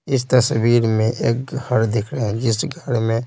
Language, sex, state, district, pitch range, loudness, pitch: Hindi, male, Bihar, Patna, 115-135 Hz, -19 LUFS, 120 Hz